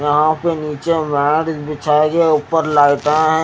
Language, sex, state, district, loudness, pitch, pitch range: Hindi, male, Haryana, Jhajjar, -15 LUFS, 155 Hz, 150-160 Hz